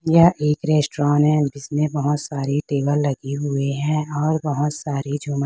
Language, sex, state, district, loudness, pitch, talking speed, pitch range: Hindi, female, Chhattisgarh, Raipur, -21 LUFS, 145 Hz, 165 wpm, 140-150 Hz